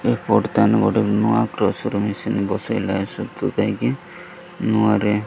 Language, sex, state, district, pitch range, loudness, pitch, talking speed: Odia, male, Odisha, Malkangiri, 105-125 Hz, -20 LUFS, 110 Hz, 135 wpm